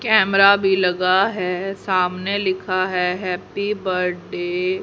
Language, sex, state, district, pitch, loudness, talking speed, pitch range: Hindi, female, Haryana, Rohtak, 190 Hz, -19 LUFS, 125 wpm, 185-200 Hz